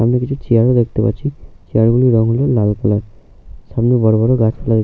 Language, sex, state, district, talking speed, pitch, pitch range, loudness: Bengali, male, West Bengal, Jhargram, 210 wpm, 115 Hz, 110-125 Hz, -15 LUFS